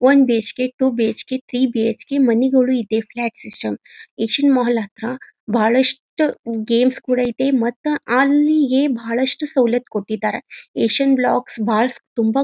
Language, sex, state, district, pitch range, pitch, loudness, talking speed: Kannada, female, Karnataka, Gulbarga, 230-270 Hz, 250 Hz, -18 LUFS, 130 wpm